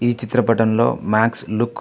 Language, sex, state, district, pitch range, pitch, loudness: Telugu, male, Andhra Pradesh, Visakhapatnam, 110-120 Hz, 115 Hz, -18 LUFS